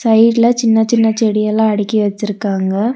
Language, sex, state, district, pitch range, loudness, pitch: Tamil, female, Tamil Nadu, Nilgiris, 210-230 Hz, -14 LUFS, 220 Hz